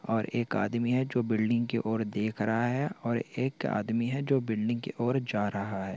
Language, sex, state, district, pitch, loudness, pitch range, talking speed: Hindi, male, Rajasthan, Nagaur, 115 Hz, -30 LUFS, 110-120 Hz, 210 wpm